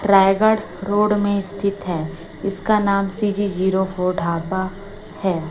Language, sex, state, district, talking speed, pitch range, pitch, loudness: Hindi, female, Chhattisgarh, Raipur, 130 wpm, 185-205 Hz, 195 Hz, -20 LUFS